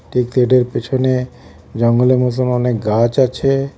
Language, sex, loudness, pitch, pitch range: Bengali, male, -15 LUFS, 125 Hz, 120-130 Hz